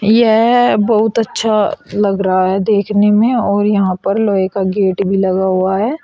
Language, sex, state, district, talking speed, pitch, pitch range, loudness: Hindi, female, Uttar Pradesh, Shamli, 180 wpm, 205 Hz, 195-220 Hz, -13 LUFS